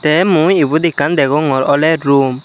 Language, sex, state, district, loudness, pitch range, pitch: Chakma, male, Tripura, Unakoti, -12 LUFS, 140-165 Hz, 150 Hz